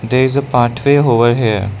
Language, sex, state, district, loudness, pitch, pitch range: English, male, Arunachal Pradesh, Lower Dibang Valley, -13 LUFS, 120 Hz, 115-135 Hz